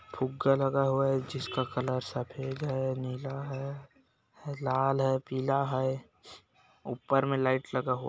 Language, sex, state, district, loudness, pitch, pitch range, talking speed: Hindi, male, Bihar, Bhagalpur, -31 LUFS, 135 Hz, 130-135 Hz, 140 wpm